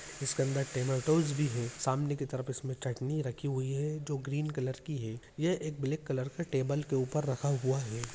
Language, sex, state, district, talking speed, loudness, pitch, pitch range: Hindi, male, Uttarakhand, Tehri Garhwal, 235 wpm, -34 LUFS, 135 Hz, 130-150 Hz